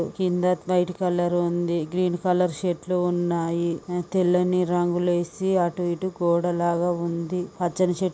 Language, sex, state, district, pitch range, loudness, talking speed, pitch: Telugu, female, Andhra Pradesh, Guntur, 175-180 Hz, -24 LUFS, 110 wpm, 175 Hz